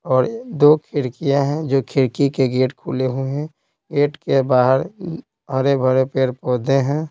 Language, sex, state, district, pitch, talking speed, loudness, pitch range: Hindi, male, Bihar, Patna, 135 Hz, 160 wpm, -19 LUFS, 130-145 Hz